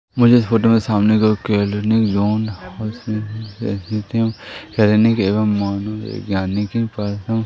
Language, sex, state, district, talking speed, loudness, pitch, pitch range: Hindi, male, Madhya Pradesh, Katni, 105 wpm, -18 LUFS, 110 Hz, 105-110 Hz